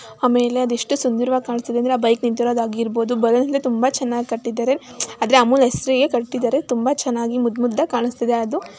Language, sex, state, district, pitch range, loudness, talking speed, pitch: Kannada, male, Karnataka, Mysore, 235-255 Hz, -19 LUFS, 165 wpm, 245 Hz